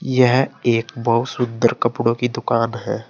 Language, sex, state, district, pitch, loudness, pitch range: Hindi, male, Uttar Pradesh, Saharanpur, 120 Hz, -19 LUFS, 115-125 Hz